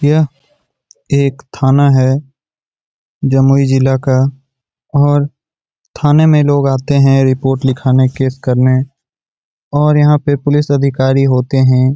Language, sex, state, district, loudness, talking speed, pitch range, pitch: Hindi, male, Bihar, Jamui, -12 LUFS, 120 wpm, 130-145 Hz, 135 Hz